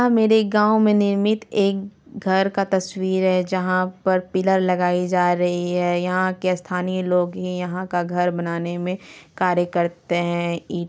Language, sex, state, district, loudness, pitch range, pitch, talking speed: Hindi, female, Bihar, Lakhisarai, -21 LUFS, 180-195 Hz, 185 Hz, 160 wpm